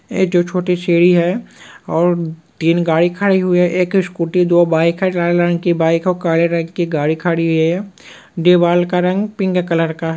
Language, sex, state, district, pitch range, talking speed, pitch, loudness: Hindi, male, West Bengal, Purulia, 165-180 Hz, 205 wpm, 175 Hz, -15 LUFS